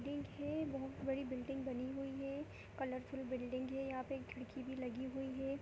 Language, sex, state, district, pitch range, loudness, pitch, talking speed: Hindi, female, Uttar Pradesh, Jyotiba Phule Nagar, 260-275 Hz, -44 LUFS, 270 Hz, 170 wpm